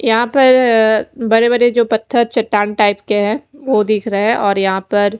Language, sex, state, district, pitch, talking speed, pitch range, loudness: Hindi, female, Odisha, Khordha, 220 Hz, 195 wpm, 210-240 Hz, -14 LUFS